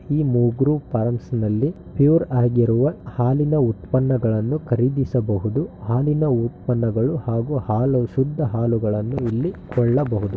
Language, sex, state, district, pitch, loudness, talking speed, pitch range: Kannada, male, Karnataka, Shimoga, 125 Hz, -21 LUFS, 95 wpm, 115-140 Hz